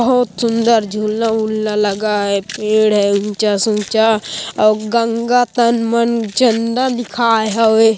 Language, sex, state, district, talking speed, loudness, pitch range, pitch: Hindi, female, Chhattisgarh, Kabirdham, 135 wpm, -15 LUFS, 210-235 Hz, 220 Hz